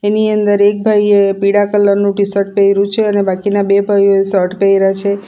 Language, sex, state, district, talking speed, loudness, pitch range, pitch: Gujarati, female, Gujarat, Valsad, 195 wpm, -12 LUFS, 200-205 Hz, 200 Hz